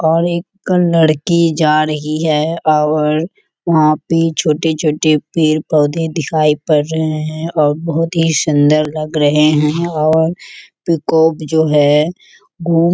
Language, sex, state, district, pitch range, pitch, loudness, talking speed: Hindi, female, Bihar, Kishanganj, 155-165 Hz, 155 Hz, -14 LUFS, 130 wpm